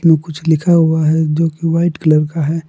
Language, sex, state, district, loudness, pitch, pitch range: Hindi, male, Jharkhand, Palamu, -14 LUFS, 160 Hz, 155-165 Hz